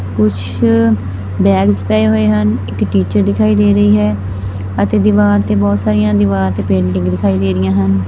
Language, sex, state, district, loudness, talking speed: Punjabi, female, Punjab, Fazilka, -13 LUFS, 170 wpm